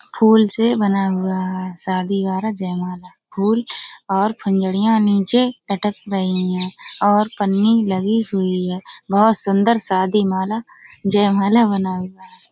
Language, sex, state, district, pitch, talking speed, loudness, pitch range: Hindi, female, Uttar Pradesh, Budaun, 195 Hz, 135 wpm, -18 LUFS, 185-220 Hz